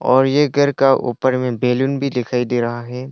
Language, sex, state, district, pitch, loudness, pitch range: Hindi, male, Arunachal Pradesh, Longding, 130 Hz, -17 LUFS, 125-135 Hz